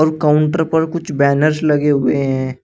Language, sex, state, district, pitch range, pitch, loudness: Hindi, male, Uttar Pradesh, Shamli, 140-155 Hz, 150 Hz, -15 LUFS